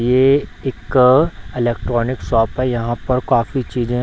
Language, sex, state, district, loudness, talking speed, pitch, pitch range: Hindi, male, Bihar, Samastipur, -17 LUFS, 150 wpm, 125 Hz, 120-130 Hz